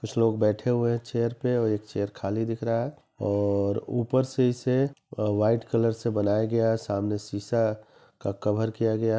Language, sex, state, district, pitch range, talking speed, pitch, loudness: Hindi, male, Chhattisgarh, Bilaspur, 105-120 Hz, 200 wpm, 115 Hz, -27 LUFS